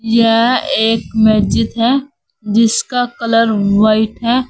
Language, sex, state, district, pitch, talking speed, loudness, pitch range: Hindi, female, Uttar Pradesh, Saharanpur, 230 Hz, 105 wpm, -13 LUFS, 220-235 Hz